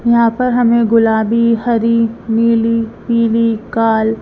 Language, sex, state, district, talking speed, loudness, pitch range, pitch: Hindi, female, Bihar, Katihar, 115 wpm, -13 LUFS, 225-235 Hz, 230 Hz